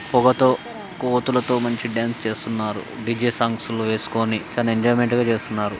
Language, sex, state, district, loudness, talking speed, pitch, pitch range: Telugu, male, Telangana, Nalgonda, -22 LUFS, 135 wpm, 115 Hz, 110-125 Hz